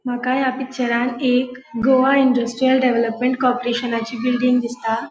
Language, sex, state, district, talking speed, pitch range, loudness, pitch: Konkani, female, Goa, North and South Goa, 130 wpm, 240-260 Hz, -19 LUFS, 250 Hz